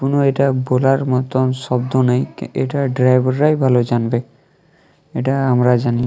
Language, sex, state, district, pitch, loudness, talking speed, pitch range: Bengali, male, Jharkhand, Jamtara, 130 Hz, -17 LUFS, 140 wpm, 125-135 Hz